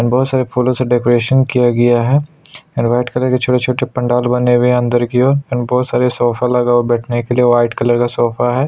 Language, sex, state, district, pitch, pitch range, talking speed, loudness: Hindi, male, Chhattisgarh, Sukma, 125 Hz, 120-125 Hz, 250 wpm, -14 LUFS